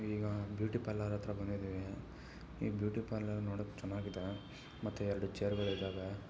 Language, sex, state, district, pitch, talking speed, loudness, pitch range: Kannada, male, Karnataka, Mysore, 100 Hz, 125 wpm, -41 LUFS, 100-105 Hz